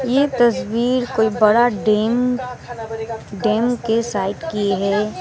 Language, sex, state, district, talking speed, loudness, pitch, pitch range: Hindi, female, West Bengal, Alipurduar, 115 wpm, -19 LUFS, 225 Hz, 215-240 Hz